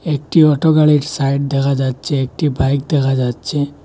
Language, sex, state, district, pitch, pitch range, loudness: Bengali, male, Assam, Hailakandi, 140 Hz, 135-150 Hz, -15 LUFS